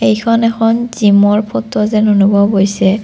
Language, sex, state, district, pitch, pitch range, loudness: Assamese, female, Assam, Kamrup Metropolitan, 210 Hz, 200-225 Hz, -12 LUFS